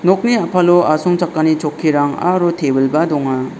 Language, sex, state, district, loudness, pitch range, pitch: Garo, male, Meghalaya, South Garo Hills, -15 LUFS, 145-175 Hz, 160 Hz